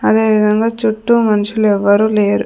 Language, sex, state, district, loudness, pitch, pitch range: Telugu, female, Andhra Pradesh, Sri Satya Sai, -13 LUFS, 215 Hz, 205-220 Hz